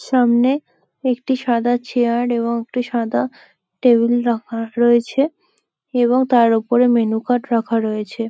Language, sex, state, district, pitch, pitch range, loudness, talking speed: Bengali, female, West Bengal, Kolkata, 240 Hz, 230-250 Hz, -18 LUFS, 125 wpm